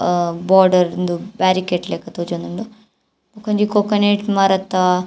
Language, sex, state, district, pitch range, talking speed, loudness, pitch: Tulu, female, Karnataka, Dakshina Kannada, 180-205 Hz, 130 wpm, -17 LUFS, 185 Hz